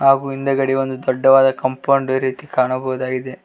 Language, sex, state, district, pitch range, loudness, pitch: Kannada, male, Karnataka, Koppal, 130-135 Hz, -17 LUFS, 130 Hz